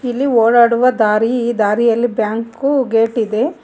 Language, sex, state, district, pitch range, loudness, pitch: Kannada, female, Karnataka, Bangalore, 225-245 Hz, -14 LUFS, 235 Hz